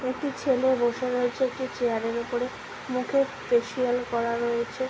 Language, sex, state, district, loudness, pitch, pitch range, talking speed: Bengali, female, West Bengal, Purulia, -27 LUFS, 250 Hz, 240-260 Hz, 160 wpm